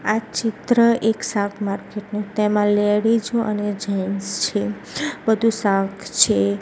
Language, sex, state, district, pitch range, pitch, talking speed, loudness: Gujarati, female, Gujarat, Gandhinagar, 195-220 Hz, 210 Hz, 125 wpm, -20 LUFS